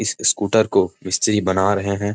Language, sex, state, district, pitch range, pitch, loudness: Hindi, male, Bihar, Jamui, 95-105 Hz, 100 Hz, -18 LUFS